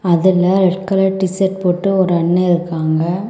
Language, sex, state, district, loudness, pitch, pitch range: Tamil, female, Tamil Nadu, Kanyakumari, -15 LUFS, 185 Hz, 175-190 Hz